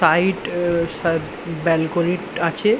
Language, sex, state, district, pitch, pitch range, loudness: Bengali, male, West Bengal, Dakshin Dinajpur, 170 Hz, 165-180 Hz, -21 LUFS